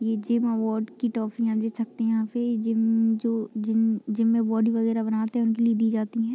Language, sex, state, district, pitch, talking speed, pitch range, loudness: Hindi, female, Bihar, Gopalganj, 225 Hz, 225 wpm, 220-230 Hz, -25 LUFS